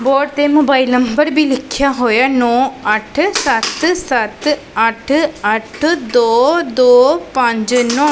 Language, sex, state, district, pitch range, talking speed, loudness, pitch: Punjabi, female, Punjab, Pathankot, 240-295 Hz, 135 wpm, -13 LUFS, 265 Hz